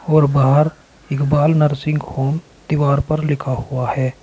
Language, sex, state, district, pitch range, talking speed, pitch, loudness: Hindi, male, Uttar Pradesh, Shamli, 135-150 Hz, 140 wpm, 145 Hz, -18 LUFS